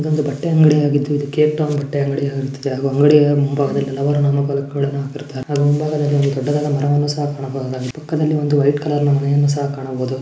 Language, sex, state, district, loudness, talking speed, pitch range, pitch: Kannada, male, Karnataka, Mysore, -17 LUFS, 150 wpm, 140-145 Hz, 145 Hz